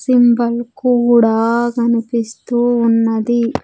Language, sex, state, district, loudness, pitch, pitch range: Telugu, female, Andhra Pradesh, Sri Satya Sai, -15 LUFS, 235 Hz, 230-240 Hz